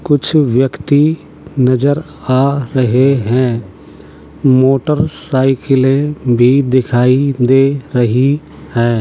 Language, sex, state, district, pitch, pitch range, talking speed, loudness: Hindi, male, Uttar Pradesh, Jalaun, 130 Hz, 125-140 Hz, 85 wpm, -13 LUFS